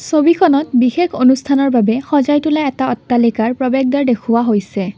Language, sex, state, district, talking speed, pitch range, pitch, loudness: Assamese, female, Assam, Kamrup Metropolitan, 145 wpm, 235-290 Hz, 260 Hz, -14 LUFS